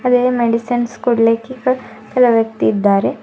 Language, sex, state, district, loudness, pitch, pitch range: Kannada, female, Karnataka, Bidar, -15 LUFS, 240 Hz, 230-250 Hz